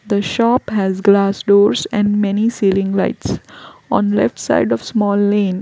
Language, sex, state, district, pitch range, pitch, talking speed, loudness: English, female, Gujarat, Valsad, 200-210 Hz, 205 Hz, 160 wpm, -16 LUFS